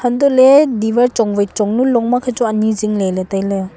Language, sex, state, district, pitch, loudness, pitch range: Wancho, female, Arunachal Pradesh, Longding, 225 Hz, -14 LUFS, 205-250 Hz